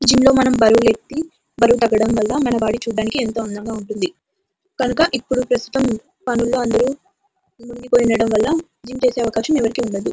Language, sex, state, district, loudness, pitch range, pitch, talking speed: Telugu, female, Andhra Pradesh, Anantapur, -18 LUFS, 225-260 Hz, 240 Hz, 160 wpm